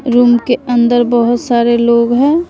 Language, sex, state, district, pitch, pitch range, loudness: Hindi, female, Bihar, West Champaran, 240 Hz, 235-245 Hz, -11 LUFS